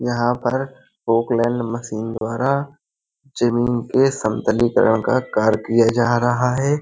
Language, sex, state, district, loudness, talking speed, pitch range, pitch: Hindi, male, Uttar Pradesh, Hamirpur, -19 LUFS, 115 wpm, 115-130 Hz, 120 Hz